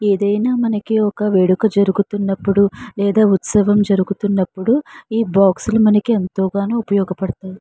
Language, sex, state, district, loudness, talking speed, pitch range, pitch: Telugu, female, Andhra Pradesh, Srikakulam, -16 LUFS, 105 wpm, 195-215 Hz, 200 Hz